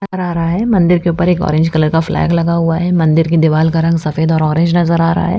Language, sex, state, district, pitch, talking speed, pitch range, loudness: Hindi, female, Delhi, New Delhi, 165 Hz, 280 wpm, 160-175 Hz, -13 LUFS